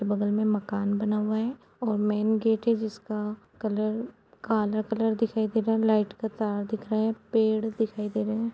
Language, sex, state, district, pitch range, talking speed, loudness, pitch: Hindi, female, Uttar Pradesh, Jalaun, 210-225 Hz, 205 wpm, -27 LUFS, 215 Hz